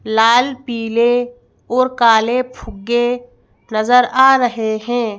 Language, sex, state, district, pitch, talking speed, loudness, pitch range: Hindi, female, Madhya Pradesh, Bhopal, 240 Hz, 105 wpm, -15 LUFS, 225-250 Hz